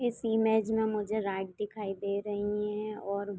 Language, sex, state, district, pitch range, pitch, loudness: Hindi, female, Uttar Pradesh, Etah, 200-220 Hz, 210 Hz, -32 LUFS